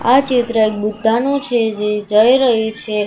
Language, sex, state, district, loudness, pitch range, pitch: Gujarati, female, Gujarat, Gandhinagar, -15 LUFS, 215-245 Hz, 225 Hz